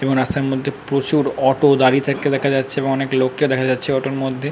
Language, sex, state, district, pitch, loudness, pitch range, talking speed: Bengali, male, West Bengal, North 24 Parganas, 135 Hz, -18 LUFS, 130-140 Hz, 210 wpm